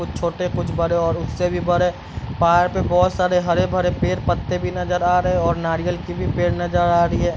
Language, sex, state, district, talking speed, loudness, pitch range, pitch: Hindi, male, Bihar, Bhagalpur, 250 wpm, -20 LUFS, 170-180 Hz, 175 Hz